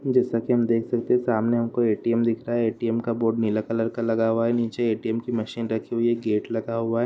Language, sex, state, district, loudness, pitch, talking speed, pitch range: Hindi, male, Bihar, Sitamarhi, -24 LUFS, 115 Hz, 270 wpm, 115-120 Hz